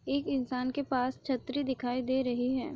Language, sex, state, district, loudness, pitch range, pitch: Hindi, female, Maharashtra, Chandrapur, -32 LUFS, 250-270 Hz, 260 Hz